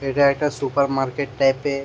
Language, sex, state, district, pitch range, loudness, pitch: Bengali, male, West Bengal, Jhargram, 135-140 Hz, -20 LUFS, 140 Hz